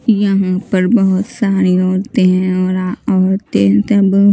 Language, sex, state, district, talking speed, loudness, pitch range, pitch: Hindi, female, Maharashtra, Mumbai Suburban, 125 wpm, -13 LUFS, 185-200 Hz, 190 Hz